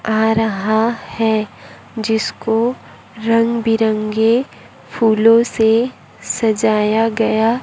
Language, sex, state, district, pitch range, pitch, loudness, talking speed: Hindi, male, Chhattisgarh, Raipur, 220-230 Hz, 225 Hz, -16 LUFS, 80 wpm